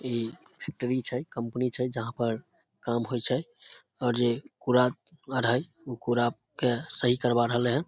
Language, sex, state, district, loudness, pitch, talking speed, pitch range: Maithili, male, Bihar, Samastipur, -29 LUFS, 125 Hz, 165 wpm, 120-130 Hz